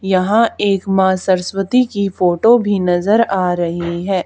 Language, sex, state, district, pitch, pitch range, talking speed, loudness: Hindi, female, Haryana, Charkhi Dadri, 190 Hz, 180-205 Hz, 155 wpm, -15 LUFS